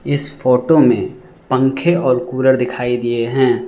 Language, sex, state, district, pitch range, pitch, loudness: Hindi, male, Arunachal Pradesh, Lower Dibang Valley, 125-140 Hz, 130 Hz, -15 LUFS